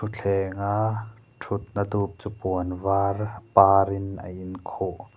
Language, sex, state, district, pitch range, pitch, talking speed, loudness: Mizo, male, Mizoram, Aizawl, 95-105 Hz, 100 Hz, 125 wpm, -25 LUFS